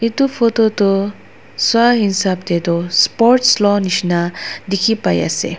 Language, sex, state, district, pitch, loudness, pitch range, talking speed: Nagamese, female, Nagaland, Dimapur, 205 Hz, -15 LUFS, 185-230 Hz, 130 wpm